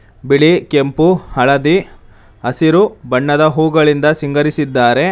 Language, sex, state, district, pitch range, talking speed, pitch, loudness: Kannada, male, Karnataka, Bangalore, 125-155 Hz, 80 wpm, 145 Hz, -13 LUFS